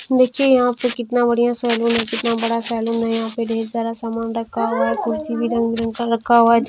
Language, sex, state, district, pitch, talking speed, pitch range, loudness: Maithili, female, Bihar, Bhagalpur, 230 Hz, 240 wpm, 230-240 Hz, -19 LUFS